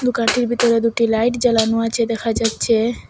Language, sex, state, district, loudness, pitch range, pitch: Bengali, female, Assam, Hailakandi, -17 LUFS, 225-240 Hz, 230 Hz